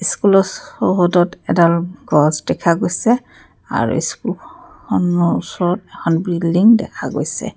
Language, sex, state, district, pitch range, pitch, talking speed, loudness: Assamese, female, Assam, Kamrup Metropolitan, 170-190 Hz, 175 Hz, 105 wpm, -17 LUFS